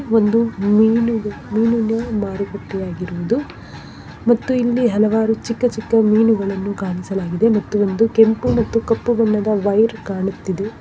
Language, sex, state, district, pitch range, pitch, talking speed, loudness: Kannada, female, Karnataka, Bangalore, 200-230 Hz, 220 Hz, 110 wpm, -18 LUFS